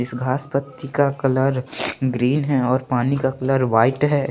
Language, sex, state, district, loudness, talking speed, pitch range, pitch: Hindi, male, Chandigarh, Chandigarh, -20 LUFS, 180 wpm, 130-140 Hz, 135 Hz